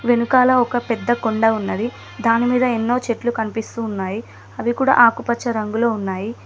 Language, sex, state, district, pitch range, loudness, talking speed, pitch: Telugu, female, Telangana, Mahabubabad, 225-240 Hz, -19 LUFS, 150 wpm, 235 Hz